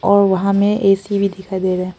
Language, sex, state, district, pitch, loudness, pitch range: Hindi, female, Arunachal Pradesh, Papum Pare, 195 Hz, -16 LUFS, 190-200 Hz